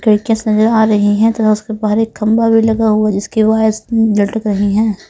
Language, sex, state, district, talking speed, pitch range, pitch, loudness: Hindi, male, Punjab, Pathankot, 190 wpm, 210-225 Hz, 220 Hz, -13 LUFS